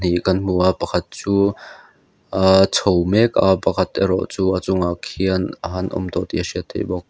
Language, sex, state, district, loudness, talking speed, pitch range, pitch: Mizo, male, Mizoram, Aizawl, -19 LUFS, 220 wpm, 90-95 Hz, 95 Hz